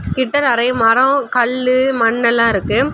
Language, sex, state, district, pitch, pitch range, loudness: Tamil, female, Tamil Nadu, Kanyakumari, 250 Hz, 235-260 Hz, -14 LUFS